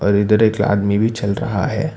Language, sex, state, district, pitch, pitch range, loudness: Hindi, male, Karnataka, Bangalore, 100 Hz, 100-105 Hz, -17 LUFS